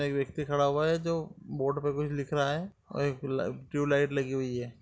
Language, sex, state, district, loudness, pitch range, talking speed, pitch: Hindi, male, Uttar Pradesh, Etah, -31 LUFS, 140-150 Hz, 235 wpm, 145 Hz